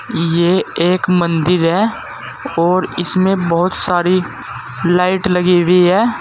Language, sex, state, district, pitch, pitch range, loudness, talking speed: Hindi, male, Uttar Pradesh, Saharanpur, 180 Hz, 175-185 Hz, -14 LUFS, 115 wpm